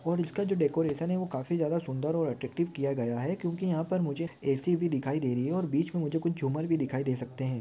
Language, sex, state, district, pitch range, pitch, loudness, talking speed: Hindi, male, Maharashtra, Pune, 135-170 Hz, 160 Hz, -31 LUFS, 275 wpm